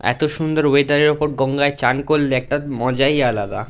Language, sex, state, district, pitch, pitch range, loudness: Bengali, male, West Bengal, North 24 Parganas, 140 Hz, 130-150 Hz, -18 LUFS